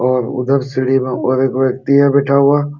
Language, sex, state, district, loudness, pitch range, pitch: Hindi, male, Uttar Pradesh, Jalaun, -14 LUFS, 130-140 Hz, 135 Hz